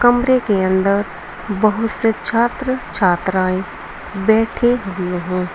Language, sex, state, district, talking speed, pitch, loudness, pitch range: Hindi, female, Uttar Pradesh, Saharanpur, 110 wpm, 205 Hz, -17 LUFS, 185-235 Hz